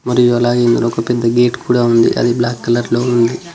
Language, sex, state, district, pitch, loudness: Telugu, male, Telangana, Mahabubabad, 120 Hz, -14 LUFS